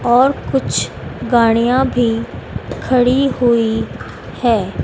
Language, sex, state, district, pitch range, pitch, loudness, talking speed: Hindi, female, Madhya Pradesh, Dhar, 230-255 Hz, 240 Hz, -15 LUFS, 85 wpm